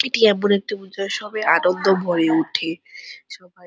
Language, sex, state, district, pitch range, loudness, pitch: Bengali, female, West Bengal, Purulia, 180-215 Hz, -19 LUFS, 195 Hz